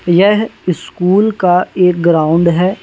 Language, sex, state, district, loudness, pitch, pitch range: Hindi, male, Madhya Pradesh, Bhopal, -12 LUFS, 180 Hz, 170-190 Hz